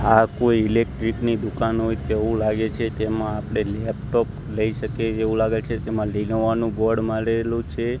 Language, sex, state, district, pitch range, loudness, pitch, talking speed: Gujarati, male, Gujarat, Gandhinagar, 110-115 Hz, -23 LUFS, 110 Hz, 175 wpm